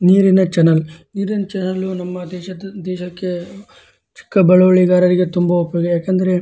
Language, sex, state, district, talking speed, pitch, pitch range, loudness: Kannada, male, Karnataka, Dharwad, 110 wpm, 180 Hz, 180-190 Hz, -16 LUFS